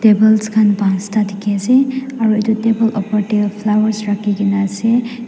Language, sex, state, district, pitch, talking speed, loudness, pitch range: Nagamese, female, Nagaland, Dimapur, 215 Hz, 135 wpm, -15 LUFS, 205-225 Hz